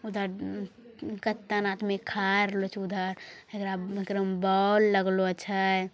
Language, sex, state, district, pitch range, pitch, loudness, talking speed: Angika, female, Bihar, Bhagalpur, 190-205 Hz, 195 Hz, -28 LUFS, 110 wpm